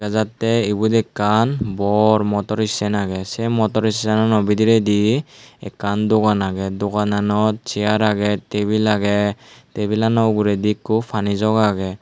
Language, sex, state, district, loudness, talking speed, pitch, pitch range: Chakma, male, Tripura, Unakoti, -18 LUFS, 120 wpm, 105 Hz, 105-110 Hz